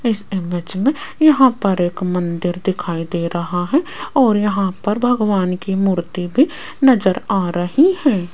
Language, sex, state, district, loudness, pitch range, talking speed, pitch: Hindi, female, Rajasthan, Jaipur, -17 LUFS, 175-250 Hz, 160 wpm, 195 Hz